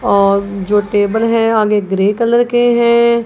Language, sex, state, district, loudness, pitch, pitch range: Hindi, female, Punjab, Kapurthala, -13 LUFS, 220 Hz, 200-235 Hz